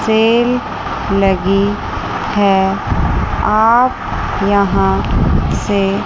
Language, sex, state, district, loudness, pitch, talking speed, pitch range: Hindi, female, Chandigarh, Chandigarh, -14 LUFS, 200 Hz, 60 wpm, 195-225 Hz